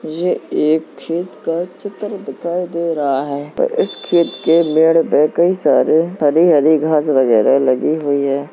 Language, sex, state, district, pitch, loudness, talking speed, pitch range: Hindi, male, Uttar Pradesh, Jalaun, 160 Hz, -15 LUFS, 160 wpm, 150-175 Hz